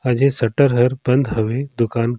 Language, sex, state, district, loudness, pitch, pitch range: Surgujia, male, Chhattisgarh, Sarguja, -18 LUFS, 125 Hz, 115-135 Hz